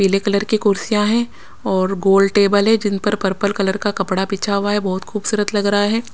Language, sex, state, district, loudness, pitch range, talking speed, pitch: Hindi, female, Maharashtra, Washim, -17 LUFS, 195-210 Hz, 225 wpm, 205 Hz